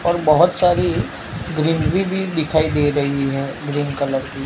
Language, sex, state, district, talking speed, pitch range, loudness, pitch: Hindi, male, Gujarat, Gandhinagar, 160 wpm, 140-175 Hz, -19 LUFS, 155 Hz